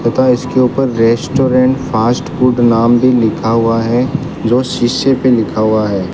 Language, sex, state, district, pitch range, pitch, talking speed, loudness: Hindi, male, Rajasthan, Bikaner, 115-130 Hz, 120 Hz, 165 wpm, -12 LUFS